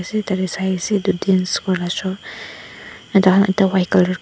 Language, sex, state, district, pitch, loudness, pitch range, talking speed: Nagamese, female, Nagaland, Dimapur, 190 Hz, -18 LUFS, 185-195 Hz, 130 wpm